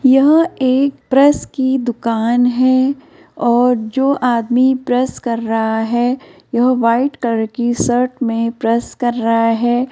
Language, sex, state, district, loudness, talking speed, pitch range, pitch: Hindi, female, Uttar Pradesh, Muzaffarnagar, -15 LUFS, 140 wpm, 235-265 Hz, 245 Hz